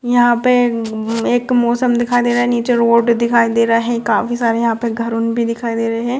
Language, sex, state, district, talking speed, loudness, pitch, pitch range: Hindi, female, Bihar, Gopalganj, 240 wpm, -15 LUFS, 235 Hz, 230-240 Hz